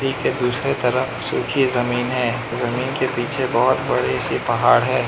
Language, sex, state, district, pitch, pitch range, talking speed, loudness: Hindi, male, Manipur, Imphal West, 125 Hz, 120-130 Hz, 155 wpm, -20 LUFS